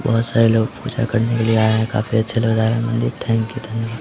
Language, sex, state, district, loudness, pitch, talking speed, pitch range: Hindi, male, Bihar, Samastipur, -18 LUFS, 115 Hz, 255 wpm, 110-115 Hz